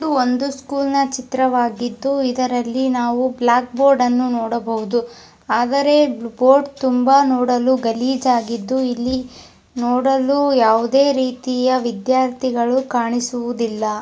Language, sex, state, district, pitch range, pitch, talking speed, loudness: Kannada, female, Karnataka, Dharwad, 240-265 Hz, 255 Hz, 105 wpm, -18 LUFS